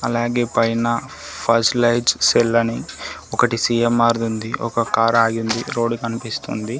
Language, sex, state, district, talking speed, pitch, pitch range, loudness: Telugu, male, Telangana, Komaram Bheem, 115 wpm, 115 Hz, 115-120 Hz, -19 LUFS